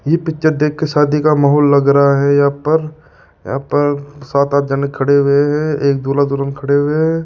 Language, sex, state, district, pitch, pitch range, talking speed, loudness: Hindi, male, Rajasthan, Jaipur, 145 Hz, 140-150 Hz, 200 wpm, -14 LUFS